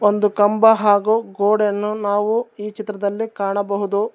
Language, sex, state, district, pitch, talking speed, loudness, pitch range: Kannada, male, Karnataka, Bangalore, 210 Hz, 115 wpm, -18 LUFS, 205-215 Hz